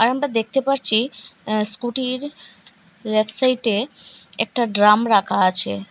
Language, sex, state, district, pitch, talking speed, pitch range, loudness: Bengali, female, Assam, Hailakandi, 220 Hz, 100 wpm, 205-255 Hz, -19 LUFS